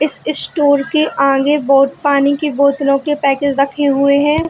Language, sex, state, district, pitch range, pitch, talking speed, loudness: Hindi, female, Chhattisgarh, Bilaspur, 275-295 Hz, 280 Hz, 200 wpm, -14 LUFS